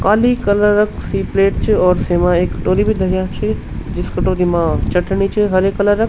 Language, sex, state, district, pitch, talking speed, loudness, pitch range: Garhwali, male, Uttarakhand, Tehri Garhwal, 195 Hz, 205 wpm, -16 LUFS, 180-205 Hz